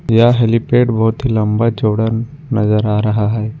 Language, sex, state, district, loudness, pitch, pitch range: Hindi, male, Jharkhand, Ranchi, -15 LUFS, 115 Hz, 110-115 Hz